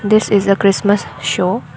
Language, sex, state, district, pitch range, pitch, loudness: English, female, Assam, Kamrup Metropolitan, 185-205 Hz, 200 Hz, -15 LUFS